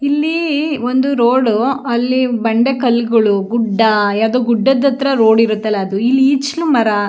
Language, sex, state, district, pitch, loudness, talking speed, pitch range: Kannada, female, Karnataka, Shimoga, 240 Hz, -14 LUFS, 145 wpm, 220-270 Hz